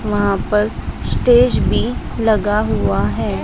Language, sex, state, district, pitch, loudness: Hindi, male, Maharashtra, Mumbai Suburban, 205 Hz, -16 LUFS